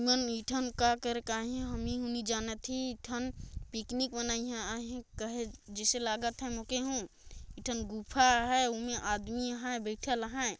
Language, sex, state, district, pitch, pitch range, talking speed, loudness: Chhattisgarhi, female, Chhattisgarh, Jashpur, 240 Hz, 225-250 Hz, 155 wpm, -34 LUFS